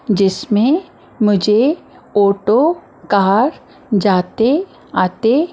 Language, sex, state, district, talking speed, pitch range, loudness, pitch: Hindi, female, Maharashtra, Mumbai Suburban, 65 wpm, 200-285 Hz, -15 LUFS, 215 Hz